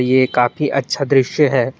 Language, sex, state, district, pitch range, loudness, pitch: Hindi, male, Tripura, West Tripura, 130-140 Hz, -16 LUFS, 135 Hz